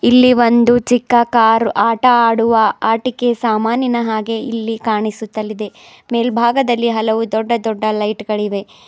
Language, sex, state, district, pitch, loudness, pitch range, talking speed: Kannada, female, Karnataka, Bidar, 230 Hz, -15 LUFS, 220-240 Hz, 115 wpm